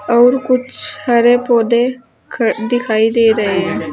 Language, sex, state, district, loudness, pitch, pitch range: Hindi, female, Uttar Pradesh, Saharanpur, -14 LUFS, 235 Hz, 225-245 Hz